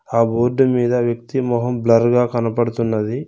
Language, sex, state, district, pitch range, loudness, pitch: Telugu, male, Telangana, Mahabubabad, 115-125 Hz, -17 LUFS, 120 Hz